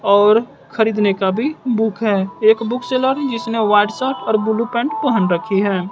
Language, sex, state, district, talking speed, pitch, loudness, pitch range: Hindi, male, Bihar, West Champaran, 185 wpm, 220 Hz, -17 LUFS, 205-245 Hz